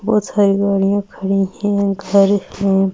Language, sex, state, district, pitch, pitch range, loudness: Hindi, female, Delhi, New Delhi, 200 Hz, 195-205 Hz, -16 LUFS